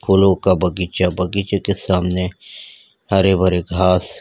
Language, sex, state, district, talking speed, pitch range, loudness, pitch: Hindi, male, Uttarakhand, Uttarkashi, 130 wpm, 90-95 Hz, -17 LUFS, 95 Hz